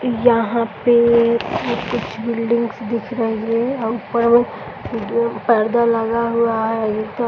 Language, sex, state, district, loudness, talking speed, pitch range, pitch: Hindi, male, Bihar, East Champaran, -18 LUFS, 115 wpm, 225-235 Hz, 235 Hz